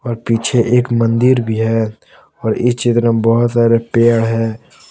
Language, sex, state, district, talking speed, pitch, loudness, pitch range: Hindi, male, Jharkhand, Palamu, 170 wpm, 115 Hz, -14 LUFS, 115-120 Hz